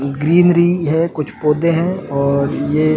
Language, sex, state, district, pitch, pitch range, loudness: Hindi, male, Delhi, New Delhi, 155 Hz, 140-170 Hz, -15 LUFS